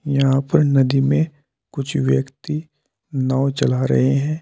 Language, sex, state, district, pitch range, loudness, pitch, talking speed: Hindi, male, Uttar Pradesh, Saharanpur, 130-150 Hz, -19 LUFS, 135 Hz, 135 wpm